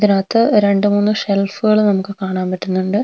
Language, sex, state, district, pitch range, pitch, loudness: Malayalam, female, Kerala, Wayanad, 190-210 Hz, 200 Hz, -16 LUFS